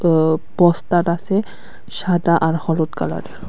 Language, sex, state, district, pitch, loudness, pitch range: Bengali, female, Tripura, West Tripura, 170 Hz, -18 LUFS, 160-175 Hz